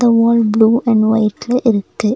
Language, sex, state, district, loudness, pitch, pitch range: Tamil, female, Tamil Nadu, Nilgiris, -14 LUFS, 225 Hz, 215-235 Hz